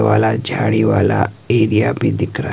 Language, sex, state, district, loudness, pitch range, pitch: Hindi, male, Himachal Pradesh, Shimla, -16 LUFS, 105-110 Hz, 110 Hz